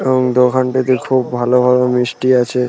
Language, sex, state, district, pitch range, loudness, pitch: Bengali, male, West Bengal, Purulia, 125-130 Hz, -14 LUFS, 125 Hz